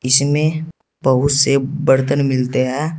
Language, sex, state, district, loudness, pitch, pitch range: Hindi, male, Uttar Pradesh, Saharanpur, -16 LUFS, 140 Hz, 130-150 Hz